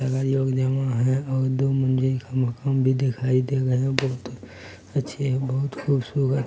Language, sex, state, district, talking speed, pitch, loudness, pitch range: Hindi, male, Bihar, Muzaffarpur, 155 wpm, 130 Hz, -24 LUFS, 130-135 Hz